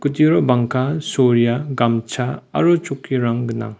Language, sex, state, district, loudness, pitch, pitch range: Garo, male, Meghalaya, West Garo Hills, -18 LUFS, 125 Hz, 120-140 Hz